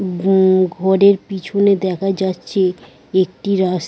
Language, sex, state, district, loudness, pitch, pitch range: Bengali, female, West Bengal, Dakshin Dinajpur, -16 LUFS, 190 Hz, 185-195 Hz